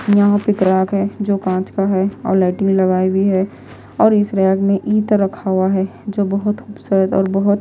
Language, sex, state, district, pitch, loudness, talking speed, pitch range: Hindi, female, Himachal Pradesh, Shimla, 195 Hz, -16 LUFS, 175 wpm, 190-205 Hz